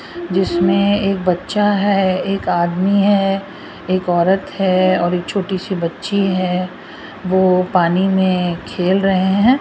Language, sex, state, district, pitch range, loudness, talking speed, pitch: Hindi, female, Rajasthan, Jaipur, 180-195 Hz, -16 LUFS, 135 wpm, 185 Hz